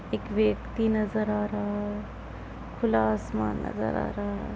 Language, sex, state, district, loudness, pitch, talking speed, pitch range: Hindi, female, Bihar, Darbhanga, -28 LUFS, 105 Hz, 160 wpm, 105-110 Hz